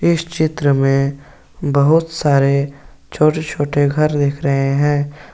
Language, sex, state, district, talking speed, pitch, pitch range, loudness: Hindi, male, Jharkhand, Garhwa, 125 wpm, 145 Hz, 140-155 Hz, -16 LUFS